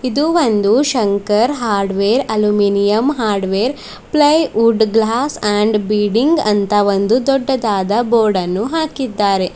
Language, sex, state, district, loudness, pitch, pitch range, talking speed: Kannada, female, Karnataka, Bidar, -15 LUFS, 215 Hz, 205-260 Hz, 115 wpm